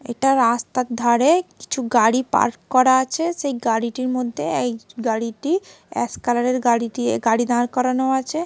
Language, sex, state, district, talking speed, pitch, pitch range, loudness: Bengali, female, West Bengal, Kolkata, 150 wpm, 245 Hz, 235-265 Hz, -20 LUFS